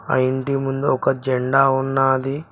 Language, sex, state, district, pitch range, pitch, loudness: Telugu, male, Telangana, Mahabubabad, 130-135 Hz, 135 Hz, -19 LUFS